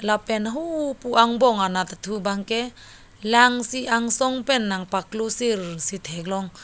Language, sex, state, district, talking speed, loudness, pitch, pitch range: Karbi, female, Assam, Karbi Anglong, 145 wpm, -22 LUFS, 225 Hz, 195-245 Hz